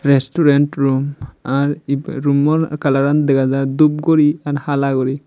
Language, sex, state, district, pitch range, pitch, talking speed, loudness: Chakma, male, Tripura, Dhalai, 135-150 Hz, 140 Hz, 135 wpm, -16 LUFS